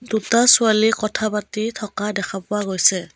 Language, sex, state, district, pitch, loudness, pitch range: Assamese, female, Assam, Kamrup Metropolitan, 215 Hz, -18 LUFS, 200-220 Hz